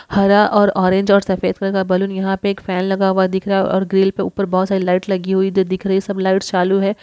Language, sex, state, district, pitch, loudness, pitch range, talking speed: Hindi, female, Uttar Pradesh, Gorakhpur, 195 Hz, -16 LUFS, 190-195 Hz, 280 wpm